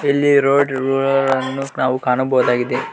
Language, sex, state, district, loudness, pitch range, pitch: Kannada, male, Karnataka, Koppal, -17 LUFS, 130-135 Hz, 135 Hz